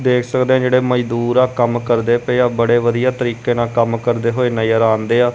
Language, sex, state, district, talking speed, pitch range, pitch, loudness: Punjabi, male, Punjab, Kapurthala, 190 wpm, 115-125 Hz, 120 Hz, -16 LUFS